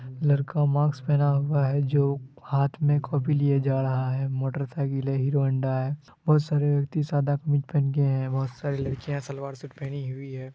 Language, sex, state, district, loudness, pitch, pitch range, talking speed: Hindi, male, Bihar, Kishanganj, -26 LUFS, 140 Hz, 135-145 Hz, 190 wpm